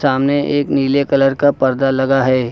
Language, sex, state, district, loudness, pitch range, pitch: Hindi, male, Uttar Pradesh, Lucknow, -15 LUFS, 130-140 Hz, 135 Hz